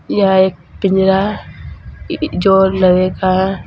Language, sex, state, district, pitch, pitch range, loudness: Hindi, female, Uttar Pradesh, Saharanpur, 190 Hz, 185-195 Hz, -14 LUFS